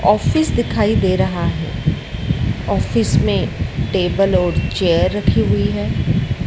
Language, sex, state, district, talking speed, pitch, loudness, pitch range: Hindi, male, Madhya Pradesh, Dhar, 120 wpm, 160 Hz, -17 LUFS, 115-195 Hz